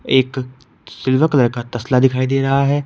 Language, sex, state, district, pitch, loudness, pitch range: Hindi, male, Uttar Pradesh, Shamli, 130 Hz, -17 LUFS, 125-135 Hz